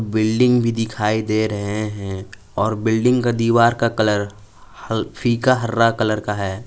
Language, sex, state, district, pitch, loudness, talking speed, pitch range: Hindi, male, Jharkhand, Palamu, 110 Hz, -19 LUFS, 160 wpm, 105-115 Hz